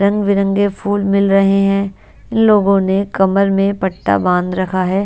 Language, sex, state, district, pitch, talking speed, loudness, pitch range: Hindi, female, Odisha, Nuapada, 195 Hz, 165 wpm, -14 LUFS, 190-200 Hz